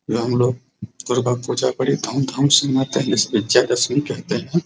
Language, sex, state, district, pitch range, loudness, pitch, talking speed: Hindi, male, Bihar, Araria, 125-140 Hz, -19 LUFS, 130 Hz, 230 wpm